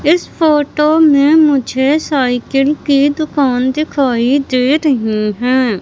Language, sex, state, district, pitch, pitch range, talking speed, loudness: Hindi, female, Madhya Pradesh, Katni, 280 Hz, 255-300 Hz, 115 wpm, -13 LUFS